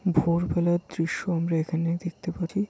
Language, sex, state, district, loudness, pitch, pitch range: Bengali, male, West Bengal, Malda, -27 LUFS, 170 Hz, 165-175 Hz